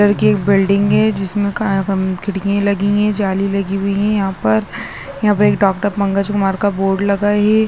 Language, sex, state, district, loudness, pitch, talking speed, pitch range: Hindi, female, Bihar, Begusarai, -16 LUFS, 200 Hz, 205 wpm, 195-205 Hz